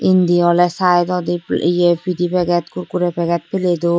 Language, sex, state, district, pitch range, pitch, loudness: Chakma, female, Tripura, Unakoti, 175-180 Hz, 175 Hz, -16 LUFS